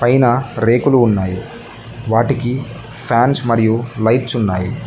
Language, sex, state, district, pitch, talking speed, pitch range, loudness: Telugu, male, Telangana, Mahabubabad, 120 Hz, 100 wpm, 115-125 Hz, -15 LUFS